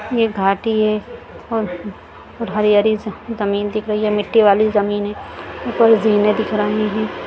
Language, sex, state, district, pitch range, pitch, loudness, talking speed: Hindi, female, Bihar, Lakhisarai, 205-220 Hz, 215 Hz, -17 LUFS, 155 wpm